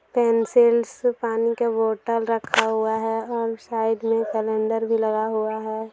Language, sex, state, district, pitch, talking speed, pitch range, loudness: Hindi, female, Bihar, Gopalganj, 225 Hz, 150 wpm, 220-230 Hz, -22 LUFS